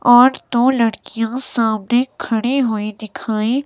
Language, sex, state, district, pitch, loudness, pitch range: Hindi, female, Himachal Pradesh, Shimla, 235 Hz, -17 LUFS, 220-255 Hz